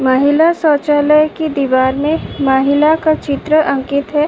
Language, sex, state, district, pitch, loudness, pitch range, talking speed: Hindi, female, Uttar Pradesh, Muzaffarnagar, 295 Hz, -13 LUFS, 275-310 Hz, 140 wpm